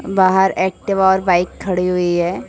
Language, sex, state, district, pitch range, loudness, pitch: Hindi, female, Chhattisgarh, Balrampur, 180-190 Hz, -16 LUFS, 185 Hz